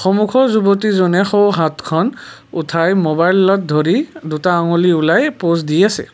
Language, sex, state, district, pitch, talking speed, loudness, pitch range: Assamese, male, Assam, Kamrup Metropolitan, 185 Hz, 115 wpm, -14 LUFS, 165-205 Hz